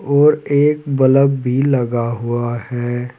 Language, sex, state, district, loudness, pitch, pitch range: Hindi, male, Uttar Pradesh, Saharanpur, -16 LUFS, 130 Hz, 120-140 Hz